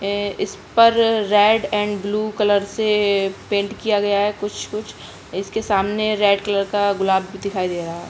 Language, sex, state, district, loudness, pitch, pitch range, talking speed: Hindi, female, Uttar Pradesh, Budaun, -19 LUFS, 205 Hz, 200-210 Hz, 180 wpm